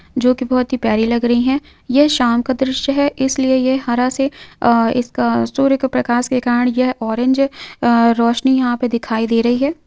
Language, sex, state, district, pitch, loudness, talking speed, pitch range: Hindi, female, Jharkhand, Sahebganj, 250 Hz, -16 LUFS, 200 wpm, 235-265 Hz